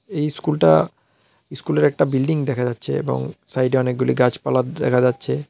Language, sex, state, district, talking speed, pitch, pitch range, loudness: Bengali, male, Tripura, South Tripura, 175 wpm, 125 Hz, 125-140 Hz, -20 LUFS